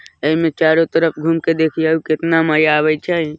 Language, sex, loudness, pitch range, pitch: Bajjika, male, -16 LUFS, 155-165 Hz, 160 Hz